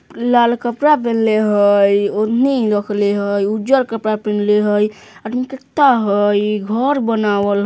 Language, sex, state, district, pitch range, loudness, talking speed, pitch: Bajjika, female, Bihar, Vaishali, 205-240 Hz, -15 LUFS, 110 wpm, 215 Hz